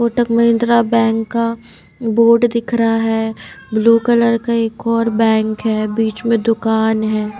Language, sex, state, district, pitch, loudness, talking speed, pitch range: Hindi, female, Bihar, Patna, 230 Hz, -15 LUFS, 155 wpm, 220-235 Hz